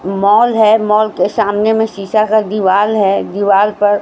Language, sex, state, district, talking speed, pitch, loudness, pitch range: Hindi, female, Bihar, Patna, 180 wpm, 210 Hz, -12 LUFS, 200-215 Hz